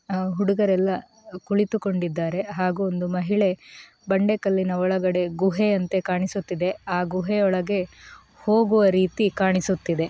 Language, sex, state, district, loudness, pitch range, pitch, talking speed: Kannada, female, Karnataka, Mysore, -23 LUFS, 180-200 Hz, 190 Hz, 95 wpm